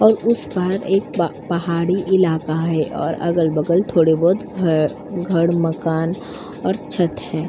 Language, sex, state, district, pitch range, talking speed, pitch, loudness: Hindi, female, Uttar Pradesh, Jyotiba Phule Nagar, 165-190 Hz, 135 wpm, 170 Hz, -19 LUFS